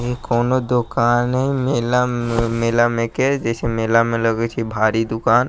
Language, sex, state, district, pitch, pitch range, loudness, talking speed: Maithili, male, Bihar, Sitamarhi, 120 Hz, 115-125 Hz, -18 LUFS, 185 wpm